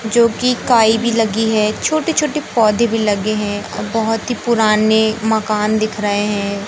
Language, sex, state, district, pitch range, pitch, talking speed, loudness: Hindi, male, Madhya Pradesh, Katni, 215-235 Hz, 220 Hz, 180 wpm, -16 LUFS